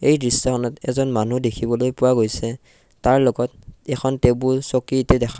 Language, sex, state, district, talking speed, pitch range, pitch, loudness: Assamese, male, Assam, Kamrup Metropolitan, 145 wpm, 120-130 Hz, 125 Hz, -20 LUFS